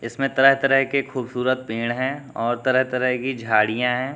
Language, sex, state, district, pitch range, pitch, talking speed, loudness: Hindi, male, Uttar Pradesh, Lucknow, 120-135 Hz, 130 Hz, 190 wpm, -21 LUFS